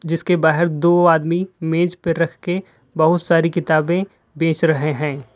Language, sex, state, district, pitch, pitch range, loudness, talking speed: Hindi, male, Uttar Pradesh, Lalitpur, 165 Hz, 160-175 Hz, -18 LUFS, 155 wpm